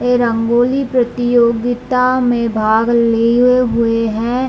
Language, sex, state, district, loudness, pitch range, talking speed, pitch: Hindi, female, Bihar, East Champaran, -14 LUFS, 230-250 Hz, 105 wpm, 240 Hz